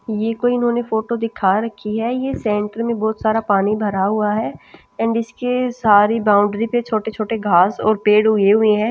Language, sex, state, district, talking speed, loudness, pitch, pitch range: Hindi, female, Punjab, Pathankot, 190 wpm, -18 LUFS, 220 Hz, 210-230 Hz